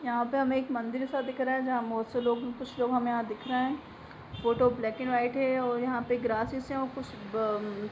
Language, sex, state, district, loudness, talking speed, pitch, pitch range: Hindi, female, Bihar, Begusarai, -31 LUFS, 250 wpm, 245 Hz, 235-260 Hz